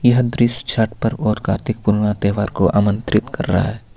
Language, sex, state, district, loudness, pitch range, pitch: Hindi, male, Jharkhand, Ranchi, -18 LUFS, 100-115 Hz, 105 Hz